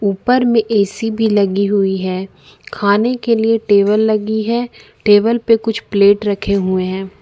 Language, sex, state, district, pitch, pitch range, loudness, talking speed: Hindi, female, Jharkhand, Ranchi, 210 Hz, 200-225 Hz, -15 LUFS, 165 wpm